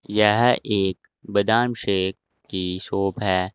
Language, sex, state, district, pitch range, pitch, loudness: Hindi, male, Uttar Pradesh, Saharanpur, 95-105 Hz, 100 Hz, -22 LUFS